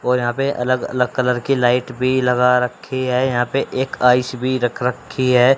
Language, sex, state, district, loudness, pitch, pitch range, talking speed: Hindi, male, Haryana, Rohtak, -18 LUFS, 125 Hz, 125-130 Hz, 215 wpm